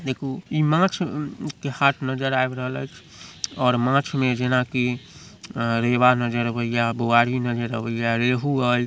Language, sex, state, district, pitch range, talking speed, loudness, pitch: Maithili, male, Bihar, Samastipur, 120-140 Hz, 155 wpm, -22 LUFS, 125 Hz